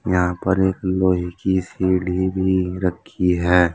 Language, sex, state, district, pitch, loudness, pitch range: Hindi, male, Uttar Pradesh, Saharanpur, 90 Hz, -20 LUFS, 90-95 Hz